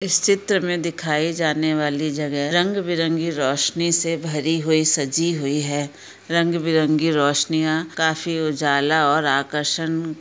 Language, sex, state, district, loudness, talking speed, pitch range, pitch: Hindi, female, Jharkhand, Sahebganj, -20 LUFS, 135 wpm, 150-165 Hz, 160 Hz